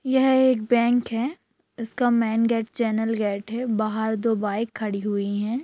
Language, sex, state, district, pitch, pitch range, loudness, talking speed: Hindi, female, Bihar, Sitamarhi, 225 Hz, 215-245 Hz, -23 LUFS, 170 wpm